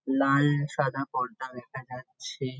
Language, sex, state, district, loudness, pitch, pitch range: Bengali, male, West Bengal, Kolkata, -28 LUFS, 130 Hz, 125-140 Hz